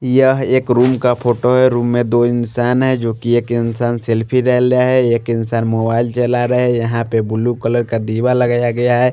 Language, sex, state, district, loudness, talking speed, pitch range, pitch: Hindi, male, Chandigarh, Chandigarh, -15 LUFS, 205 wpm, 115-125 Hz, 120 Hz